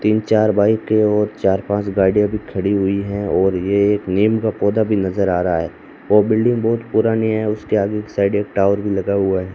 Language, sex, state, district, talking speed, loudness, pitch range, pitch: Hindi, male, Rajasthan, Bikaner, 240 wpm, -17 LUFS, 100-110 Hz, 105 Hz